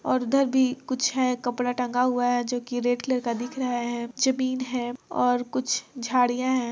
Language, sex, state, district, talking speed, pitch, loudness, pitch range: Hindi, female, Jharkhand, Jamtara, 205 wpm, 250 Hz, -25 LUFS, 245-255 Hz